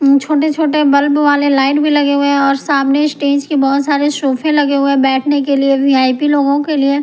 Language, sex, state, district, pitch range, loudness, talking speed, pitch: Hindi, female, Punjab, Pathankot, 275-295 Hz, -12 LUFS, 205 wpm, 280 Hz